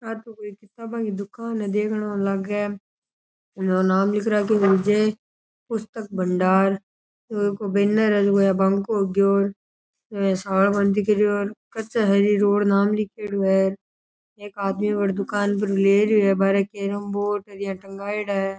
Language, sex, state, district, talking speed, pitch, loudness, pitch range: Rajasthani, male, Rajasthan, Churu, 105 wpm, 205 Hz, -22 LUFS, 195-210 Hz